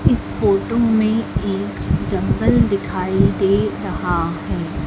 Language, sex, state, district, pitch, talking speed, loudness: Hindi, female, Madhya Pradesh, Dhar, 200 Hz, 110 wpm, -19 LUFS